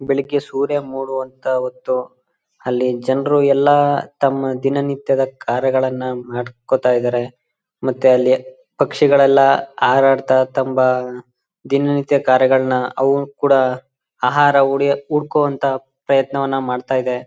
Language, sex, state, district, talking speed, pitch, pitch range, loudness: Kannada, male, Karnataka, Chamarajanagar, 105 wpm, 135 Hz, 130-140 Hz, -17 LUFS